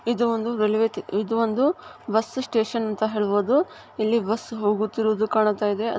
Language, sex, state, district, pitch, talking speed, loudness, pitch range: Kannada, female, Karnataka, Chamarajanagar, 220 Hz, 160 wpm, -23 LUFS, 215-230 Hz